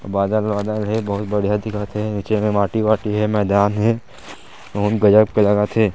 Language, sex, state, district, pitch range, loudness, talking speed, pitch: Chhattisgarhi, male, Chhattisgarh, Sarguja, 105-110 Hz, -18 LUFS, 180 wpm, 105 Hz